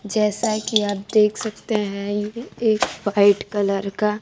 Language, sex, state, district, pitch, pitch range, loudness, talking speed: Hindi, female, Bihar, Kaimur, 210 Hz, 205-215 Hz, -21 LUFS, 140 wpm